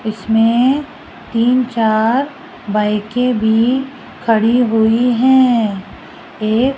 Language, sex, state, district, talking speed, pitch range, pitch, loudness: Hindi, female, Rajasthan, Jaipur, 95 wpm, 220-255 Hz, 235 Hz, -14 LUFS